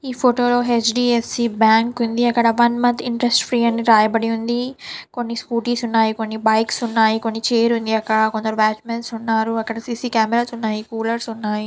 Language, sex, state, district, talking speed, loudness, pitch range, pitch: Telugu, female, Telangana, Nalgonda, 185 wpm, -18 LUFS, 220-240 Hz, 230 Hz